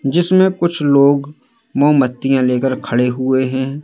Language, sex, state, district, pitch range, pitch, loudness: Hindi, male, Madhya Pradesh, Katni, 130-150 Hz, 140 Hz, -15 LUFS